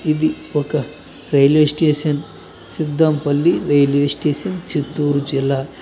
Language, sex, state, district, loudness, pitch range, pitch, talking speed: Telugu, male, Andhra Pradesh, Chittoor, -17 LUFS, 145-155 Hz, 150 Hz, 95 wpm